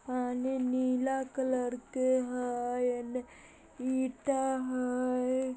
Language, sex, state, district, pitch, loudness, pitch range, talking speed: Hindi, female, Bihar, Vaishali, 255 Hz, -32 LUFS, 250-260 Hz, 85 wpm